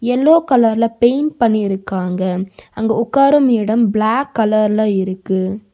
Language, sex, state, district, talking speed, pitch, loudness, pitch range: Tamil, female, Tamil Nadu, Nilgiris, 115 wpm, 220 Hz, -15 LUFS, 200-245 Hz